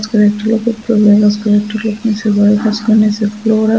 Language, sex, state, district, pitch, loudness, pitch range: Bengali, female, Tripura, West Tripura, 215 Hz, -12 LUFS, 210-220 Hz